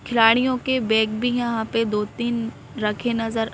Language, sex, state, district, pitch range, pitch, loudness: Hindi, female, Madhya Pradesh, Bhopal, 220-240 Hz, 230 Hz, -22 LUFS